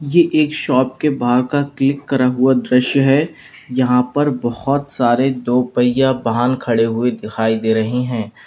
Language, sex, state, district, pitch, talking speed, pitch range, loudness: Hindi, male, Uttar Pradesh, Lalitpur, 125 Hz, 170 wpm, 120-140 Hz, -16 LUFS